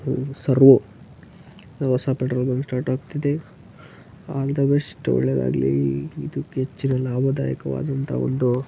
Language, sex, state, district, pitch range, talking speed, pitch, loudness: Kannada, male, Karnataka, Raichur, 125-135 Hz, 110 wpm, 130 Hz, -22 LUFS